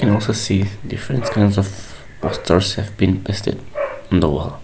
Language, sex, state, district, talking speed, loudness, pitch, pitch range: English, male, Nagaland, Kohima, 195 wpm, -19 LUFS, 100 Hz, 95-110 Hz